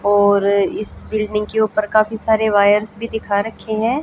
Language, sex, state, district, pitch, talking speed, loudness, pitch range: Hindi, female, Haryana, Jhajjar, 215 Hz, 180 wpm, -17 LUFS, 205-220 Hz